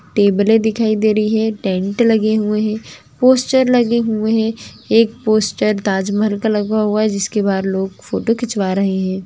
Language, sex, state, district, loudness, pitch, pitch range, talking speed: Hindi, female, Andhra Pradesh, Chittoor, -16 LUFS, 215 Hz, 200-225 Hz, 160 wpm